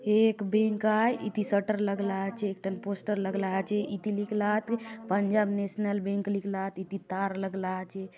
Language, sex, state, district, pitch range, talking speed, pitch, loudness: Halbi, female, Chhattisgarh, Bastar, 195-210 Hz, 175 wpm, 200 Hz, -30 LUFS